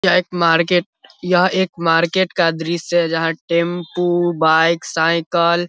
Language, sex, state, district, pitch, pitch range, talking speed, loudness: Hindi, male, Bihar, Vaishali, 170 Hz, 165-175 Hz, 150 wpm, -17 LUFS